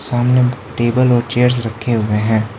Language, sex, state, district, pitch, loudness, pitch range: Hindi, male, Arunachal Pradesh, Lower Dibang Valley, 120 Hz, -15 LUFS, 110-125 Hz